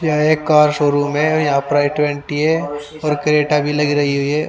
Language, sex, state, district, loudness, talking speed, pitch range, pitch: Hindi, male, Haryana, Rohtak, -16 LUFS, 255 wpm, 145-150 Hz, 150 Hz